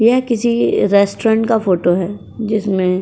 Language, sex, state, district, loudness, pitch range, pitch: Hindi, female, Uttar Pradesh, Jyotiba Phule Nagar, -15 LUFS, 185-230 Hz, 215 Hz